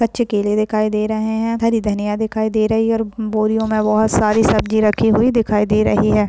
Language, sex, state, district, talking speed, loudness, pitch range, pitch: Hindi, female, Bihar, Lakhisarai, 230 wpm, -17 LUFS, 215-220 Hz, 215 Hz